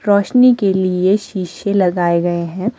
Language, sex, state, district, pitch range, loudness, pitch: Hindi, female, Himachal Pradesh, Shimla, 180-205 Hz, -15 LUFS, 190 Hz